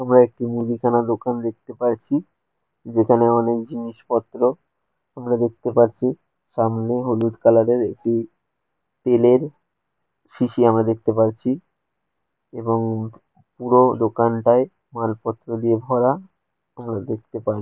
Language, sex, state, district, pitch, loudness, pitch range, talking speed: Bengali, male, West Bengal, Kolkata, 120 Hz, -20 LUFS, 115-125 Hz, 105 wpm